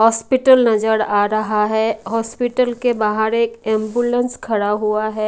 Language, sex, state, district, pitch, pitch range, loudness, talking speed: Hindi, female, Haryana, Rohtak, 220 Hz, 215-240 Hz, -17 LUFS, 145 wpm